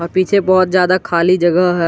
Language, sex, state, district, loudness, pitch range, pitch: Hindi, male, Jharkhand, Garhwa, -13 LUFS, 175-185 Hz, 180 Hz